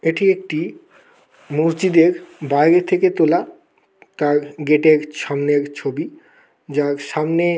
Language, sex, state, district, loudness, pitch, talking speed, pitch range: Bengali, male, West Bengal, Kolkata, -18 LUFS, 160 Hz, 105 wpm, 150-180 Hz